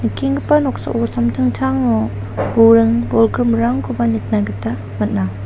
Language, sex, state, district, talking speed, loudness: Garo, female, Meghalaya, South Garo Hills, 75 wpm, -16 LUFS